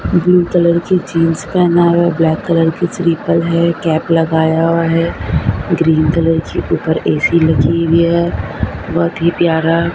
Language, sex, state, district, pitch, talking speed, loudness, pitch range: Hindi, female, Maharashtra, Mumbai Suburban, 165 Hz, 165 wpm, -13 LUFS, 160-170 Hz